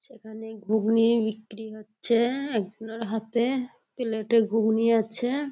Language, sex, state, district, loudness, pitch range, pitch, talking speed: Bengali, female, West Bengal, Kolkata, -25 LUFS, 220-235 Hz, 225 Hz, 110 wpm